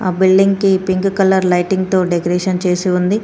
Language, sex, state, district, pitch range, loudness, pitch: Telugu, female, Telangana, Komaram Bheem, 180-195 Hz, -14 LUFS, 185 Hz